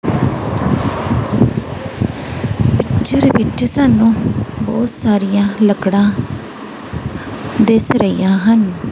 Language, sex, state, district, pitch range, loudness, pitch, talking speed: Punjabi, female, Punjab, Kapurthala, 200-225 Hz, -15 LUFS, 215 Hz, 60 wpm